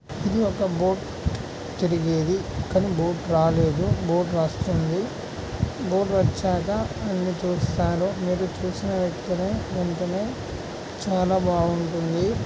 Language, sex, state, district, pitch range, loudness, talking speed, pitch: Telugu, male, Andhra Pradesh, Guntur, 170-190 Hz, -25 LUFS, 75 wpm, 180 Hz